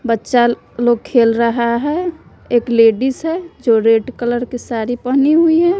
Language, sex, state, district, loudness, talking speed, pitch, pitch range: Hindi, female, Bihar, West Champaran, -15 LUFS, 165 wpm, 240 Hz, 235-285 Hz